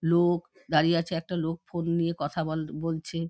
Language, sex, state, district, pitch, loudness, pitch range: Bengali, female, West Bengal, Dakshin Dinajpur, 165 Hz, -28 LUFS, 160-170 Hz